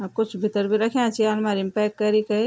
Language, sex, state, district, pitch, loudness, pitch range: Garhwali, female, Uttarakhand, Tehri Garhwal, 215 Hz, -23 LUFS, 210-220 Hz